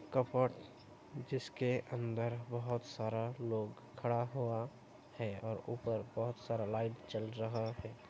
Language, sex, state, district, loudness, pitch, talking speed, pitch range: Hindi, male, Uttar Pradesh, Hamirpur, -40 LUFS, 120 Hz, 120 wpm, 110-125 Hz